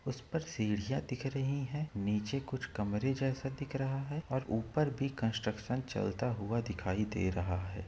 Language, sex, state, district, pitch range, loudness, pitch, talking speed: Hindi, male, Chhattisgarh, Korba, 105-135 Hz, -36 LUFS, 125 Hz, 175 wpm